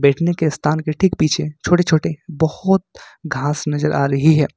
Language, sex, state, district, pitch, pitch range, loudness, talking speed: Hindi, male, Jharkhand, Ranchi, 155 Hz, 150-170 Hz, -18 LUFS, 155 wpm